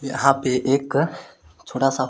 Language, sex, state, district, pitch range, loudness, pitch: Hindi, male, Jharkhand, Palamu, 130-140 Hz, -21 LUFS, 135 Hz